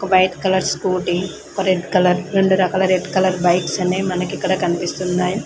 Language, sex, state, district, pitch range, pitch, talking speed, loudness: Telugu, female, Telangana, Mahabubabad, 180-190 Hz, 185 Hz, 165 wpm, -18 LUFS